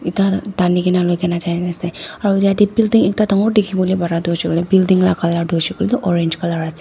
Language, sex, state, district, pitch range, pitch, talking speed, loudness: Nagamese, female, Nagaland, Dimapur, 170-195 Hz, 180 Hz, 275 wpm, -16 LUFS